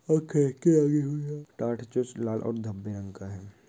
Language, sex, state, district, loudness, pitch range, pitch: Hindi, male, Bihar, Saran, -28 LUFS, 105-150 Hz, 120 Hz